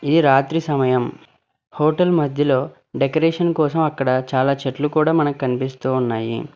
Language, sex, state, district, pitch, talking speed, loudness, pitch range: Telugu, male, Telangana, Hyderabad, 140 Hz, 130 wpm, -19 LUFS, 130-155 Hz